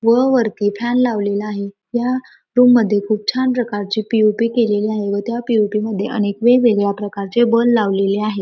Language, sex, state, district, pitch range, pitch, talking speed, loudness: Marathi, female, Maharashtra, Pune, 205-240 Hz, 215 Hz, 170 wpm, -17 LUFS